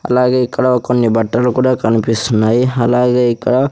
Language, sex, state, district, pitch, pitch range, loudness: Telugu, male, Andhra Pradesh, Sri Satya Sai, 125 Hz, 115-125 Hz, -14 LUFS